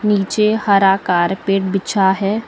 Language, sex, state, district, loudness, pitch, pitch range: Hindi, female, Uttar Pradesh, Lucknow, -15 LUFS, 195 Hz, 190-210 Hz